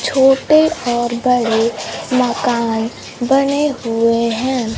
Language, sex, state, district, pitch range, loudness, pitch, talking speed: Hindi, female, Bihar, Kaimur, 230-270 Hz, -16 LUFS, 245 Hz, 90 wpm